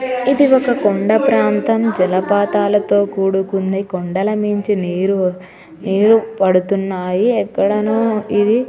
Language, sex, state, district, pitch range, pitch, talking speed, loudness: Telugu, female, Telangana, Nalgonda, 185-215 Hz, 200 Hz, 110 wpm, -16 LUFS